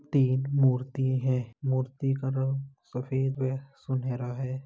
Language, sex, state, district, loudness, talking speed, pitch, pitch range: Hindi, male, Uttar Pradesh, Jalaun, -29 LUFS, 130 wpm, 130 Hz, 130-135 Hz